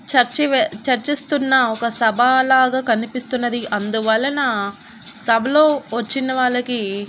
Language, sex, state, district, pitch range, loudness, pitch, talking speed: Telugu, female, Andhra Pradesh, Annamaya, 225-265 Hz, -17 LUFS, 245 Hz, 95 wpm